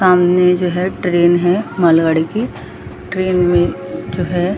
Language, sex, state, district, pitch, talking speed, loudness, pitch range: Hindi, female, Jharkhand, Jamtara, 180 Hz, 155 wpm, -15 LUFS, 175-185 Hz